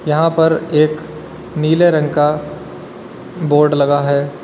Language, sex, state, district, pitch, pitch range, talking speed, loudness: Hindi, male, Uttar Pradesh, Lalitpur, 155 Hz, 150-160 Hz, 120 wpm, -14 LUFS